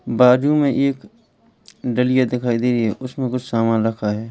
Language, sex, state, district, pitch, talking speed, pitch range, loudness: Hindi, male, Uttar Pradesh, Lalitpur, 125 Hz, 180 wpm, 115-130 Hz, -19 LUFS